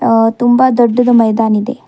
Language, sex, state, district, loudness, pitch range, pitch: Kannada, female, Karnataka, Bidar, -11 LUFS, 225-245 Hz, 240 Hz